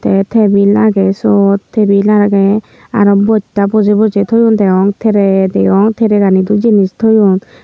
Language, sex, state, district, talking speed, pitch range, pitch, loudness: Chakma, female, Tripura, Unakoti, 150 wpm, 200-215 Hz, 205 Hz, -10 LUFS